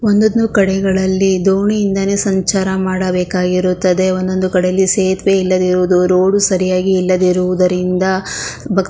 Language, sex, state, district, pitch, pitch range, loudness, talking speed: Kannada, female, Karnataka, Shimoga, 190 Hz, 185-195 Hz, -14 LUFS, 110 wpm